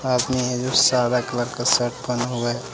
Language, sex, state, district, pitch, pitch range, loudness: Hindi, male, Jharkhand, Deoghar, 125 Hz, 120-125 Hz, -21 LUFS